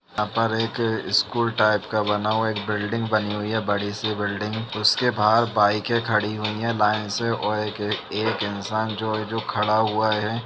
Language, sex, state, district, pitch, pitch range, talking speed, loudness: Hindi, male, Uttar Pradesh, Jalaun, 110 Hz, 105-110 Hz, 200 wpm, -23 LUFS